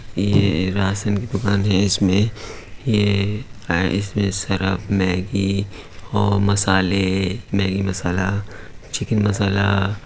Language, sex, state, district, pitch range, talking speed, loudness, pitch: Hindi, male, Uttar Pradesh, Budaun, 95-100 Hz, 100 wpm, -20 LUFS, 100 Hz